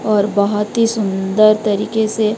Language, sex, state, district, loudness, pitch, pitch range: Hindi, female, Odisha, Malkangiri, -15 LUFS, 210 Hz, 205-215 Hz